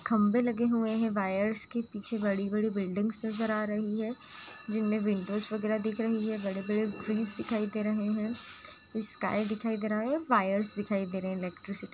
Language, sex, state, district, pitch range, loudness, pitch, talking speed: Hindi, female, Bihar, Purnia, 205-220 Hz, -31 LUFS, 215 Hz, 185 wpm